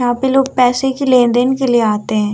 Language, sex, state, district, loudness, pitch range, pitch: Hindi, female, Bihar, Vaishali, -13 LUFS, 240-265 Hz, 250 Hz